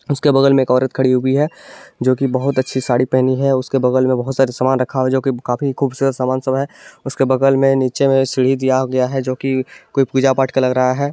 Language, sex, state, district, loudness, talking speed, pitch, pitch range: Hindi, male, Bihar, Supaul, -16 LUFS, 245 wpm, 130 Hz, 130-135 Hz